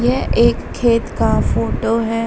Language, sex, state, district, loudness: Hindi, female, Bihar, Vaishali, -17 LUFS